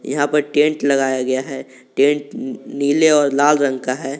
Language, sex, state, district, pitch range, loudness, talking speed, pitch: Hindi, male, Jharkhand, Garhwa, 135-150 Hz, -17 LUFS, 185 wpm, 140 Hz